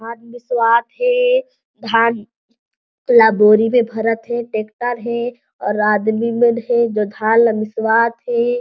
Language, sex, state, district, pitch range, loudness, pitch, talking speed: Chhattisgarhi, female, Chhattisgarh, Jashpur, 220-240 Hz, -16 LUFS, 230 Hz, 130 wpm